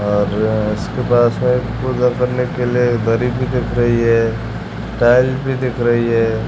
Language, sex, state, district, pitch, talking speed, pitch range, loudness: Hindi, male, Rajasthan, Bikaner, 120 Hz, 165 wpm, 115-125 Hz, -16 LUFS